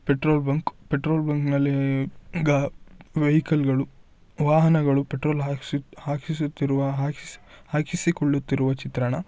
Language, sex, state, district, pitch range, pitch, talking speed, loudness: Kannada, male, Karnataka, Shimoga, 140-155 Hz, 145 Hz, 90 wpm, -24 LUFS